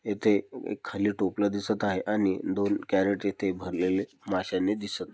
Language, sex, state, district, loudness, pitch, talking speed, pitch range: Marathi, male, Maharashtra, Dhule, -28 LUFS, 100 Hz, 150 wpm, 95-105 Hz